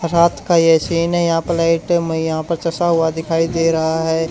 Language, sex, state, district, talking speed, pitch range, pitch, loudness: Hindi, male, Haryana, Charkhi Dadri, 225 wpm, 160-170 Hz, 165 Hz, -16 LUFS